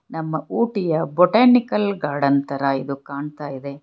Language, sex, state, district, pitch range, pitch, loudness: Kannada, female, Karnataka, Bangalore, 140-200 Hz, 150 Hz, -20 LUFS